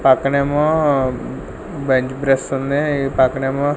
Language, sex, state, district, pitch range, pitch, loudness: Telugu, male, Andhra Pradesh, Sri Satya Sai, 135-145 Hz, 135 Hz, -18 LUFS